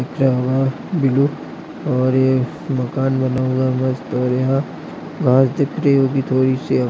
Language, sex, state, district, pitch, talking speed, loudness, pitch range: Hindi, male, Bihar, Vaishali, 130 Hz, 150 wpm, -18 LUFS, 130-135 Hz